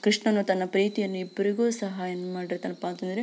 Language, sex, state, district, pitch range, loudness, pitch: Kannada, female, Karnataka, Belgaum, 185-210 Hz, -28 LUFS, 195 Hz